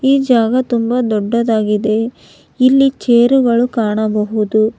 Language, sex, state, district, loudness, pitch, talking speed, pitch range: Kannada, female, Karnataka, Bangalore, -14 LUFS, 235 Hz, 90 wpm, 215-250 Hz